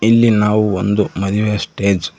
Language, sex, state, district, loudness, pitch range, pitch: Kannada, male, Karnataka, Koppal, -15 LUFS, 100-105 Hz, 105 Hz